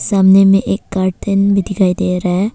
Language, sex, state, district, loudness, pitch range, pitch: Hindi, female, Arunachal Pradesh, Papum Pare, -13 LUFS, 185-200 Hz, 195 Hz